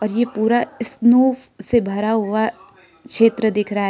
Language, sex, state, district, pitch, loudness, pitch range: Hindi, male, Arunachal Pradesh, Lower Dibang Valley, 225 Hz, -18 LUFS, 215-240 Hz